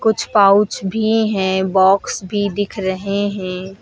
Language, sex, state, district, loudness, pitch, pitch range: Hindi, female, Uttar Pradesh, Lucknow, -17 LUFS, 200 Hz, 190-205 Hz